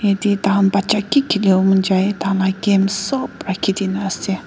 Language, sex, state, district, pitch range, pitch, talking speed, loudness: Nagamese, female, Nagaland, Dimapur, 190-200 Hz, 195 Hz, 200 wpm, -17 LUFS